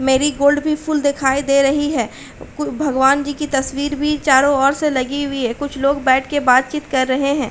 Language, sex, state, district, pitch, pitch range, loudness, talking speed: Hindi, female, Uttar Pradesh, Hamirpur, 280 Hz, 265-290 Hz, -17 LUFS, 210 wpm